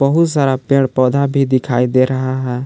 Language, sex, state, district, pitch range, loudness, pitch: Hindi, male, Jharkhand, Palamu, 130-140 Hz, -15 LUFS, 130 Hz